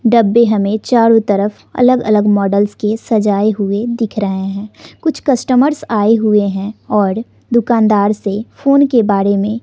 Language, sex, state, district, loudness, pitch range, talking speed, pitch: Hindi, female, Bihar, West Champaran, -13 LUFS, 205-235 Hz, 155 wpm, 215 Hz